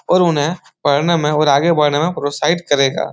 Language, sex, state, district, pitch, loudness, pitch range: Hindi, male, Bihar, Supaul, 150 Hz, -15 LUFS, 145-170 Hz